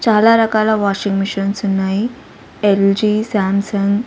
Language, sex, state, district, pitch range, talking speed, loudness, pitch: Telugu, female, Andhra Pradesh, Sri Satya Sai, 195-215 Hz, 120 wpm, -16 LUFS, 205 Hz